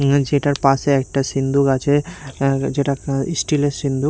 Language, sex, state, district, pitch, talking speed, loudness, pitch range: Bengali, male, Odisha, Nuapada, 140 Hz, 175 wpm, -18 LUFS, 135-145 Hz